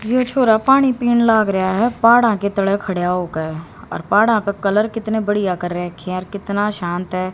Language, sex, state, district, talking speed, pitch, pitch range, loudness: Hindi, female, Haryana, Rohtak, 205 wpm, 205 Hz, 185-225 Hz, -17 LUFS